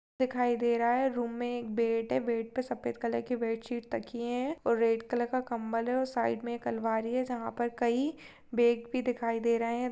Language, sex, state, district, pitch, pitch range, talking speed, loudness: Hindi, female, Goa, North and South Goa, 235 Hz, 230-245 Hz, 235 wpm, -32 LUFS